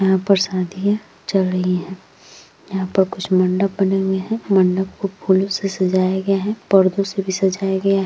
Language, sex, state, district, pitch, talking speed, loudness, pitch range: Hindi, female, Uttar Pradesh, Jyotiba Phule Nagar, 190 Hz, 195 wpm, -19 LUFS, 185-195 Hz